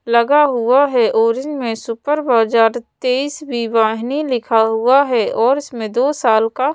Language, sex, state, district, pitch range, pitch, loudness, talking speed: Hindi, female, Madhya Pradesh, Bhopal, 230-285 Hz, 250 Hz, -16 LUFS, 160 wpm